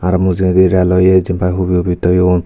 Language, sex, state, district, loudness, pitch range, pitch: Chakma, male, Tripura, Dhalai, -12 LUFS, 90-95 Hz, 90 Hz